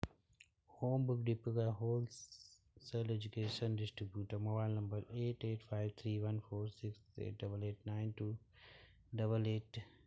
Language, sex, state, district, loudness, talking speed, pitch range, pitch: Bhojpuri, male, Uttar Pradesh, Gorakhpur, -42 LUFS, 155 wpm, 105-115 Hz, 110 Hz